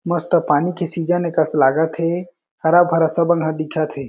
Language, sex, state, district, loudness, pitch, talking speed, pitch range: Chhattisgarhi, male, Chhattisgarh, Jashpur, -18 LUFS, 165 Hz, 175 wpm, 155-175 Hz